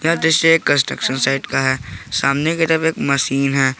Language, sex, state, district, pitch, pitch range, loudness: Hindi, male, Jharkhand, Garhwa, 140 Hz, 130-160 Hz, -17 LUFS